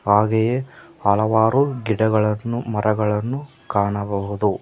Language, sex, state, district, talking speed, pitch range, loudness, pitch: Kannada, male, Karnataka, Koppal, 65 wpm, 105-115 Hz, -20 LUFS, 110 Hz